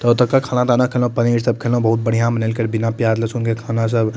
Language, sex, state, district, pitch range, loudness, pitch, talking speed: Maithili, male, Bihar, Madhepura, 115-120 Hz, -18 LUFS, 115 Hz, 275 wpm